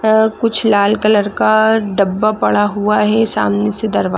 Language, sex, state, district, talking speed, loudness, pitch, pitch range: Hindi, female, Chhattisgarh, Raigarh, 170 wpm, -14 LUFS, 210 Hz, 205-220 Hz